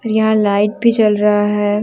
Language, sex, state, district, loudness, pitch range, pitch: Hindi, female, Jharkhand, Deoghar, -14 LUFS, 205-220 Hz, 210 Hz